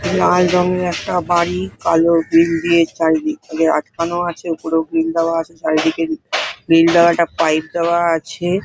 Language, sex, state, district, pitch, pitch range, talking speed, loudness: Bengali, female, West Bengal, Paschim Medinipur, 165 Hz, 160-170 Hz, 155 wpm, -16 LUFS